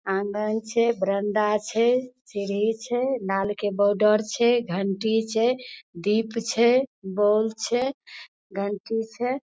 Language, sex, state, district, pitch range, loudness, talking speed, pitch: Maithili, female, Bihar, Madhepura, 205-235 Hz, -24 LUFS, 110 wpm, 220 Hz